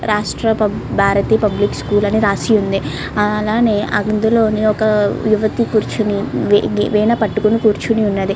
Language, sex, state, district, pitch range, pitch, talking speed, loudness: Telugu, female, Andhra Pradesh, Chittoor, 205-220 Hz, 215 Hz, 115 wpm, -15 LUFS